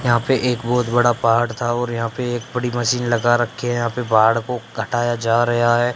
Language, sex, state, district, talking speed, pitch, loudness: Hindi, male, Haryana, Charkhi Dadri, 240 wpm, 120 Hz, -19 LUFS